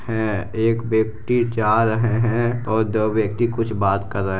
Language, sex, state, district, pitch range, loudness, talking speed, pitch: Hindi, male, Bihar, Jamui, 110-115 Hz, -20 LUFS, 190 wpm, 110 Hz